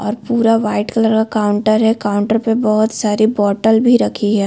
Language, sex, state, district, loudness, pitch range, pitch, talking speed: Hindi, female, Chhattisgarh, Bilaspur, -14 LUFS, 210-225 Hz, 215 Hz, 200 wpm